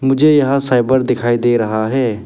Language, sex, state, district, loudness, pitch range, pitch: Hindi, male, Arunachal Pradesh, Papum Pare, -14 LUFS, 120-135 Hz, 125 Hz